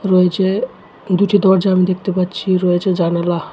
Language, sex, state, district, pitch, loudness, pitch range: Bengali, male, Tripura, West Tripura, 185 Hz, -15 LUFS, 180-190 Hz